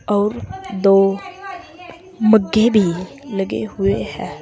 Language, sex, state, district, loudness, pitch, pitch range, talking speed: Hindi, female, Uttar Pradesh, Saharanpur, -17 LUFS, 210 Hz, 195-330 Hz, 95 wpm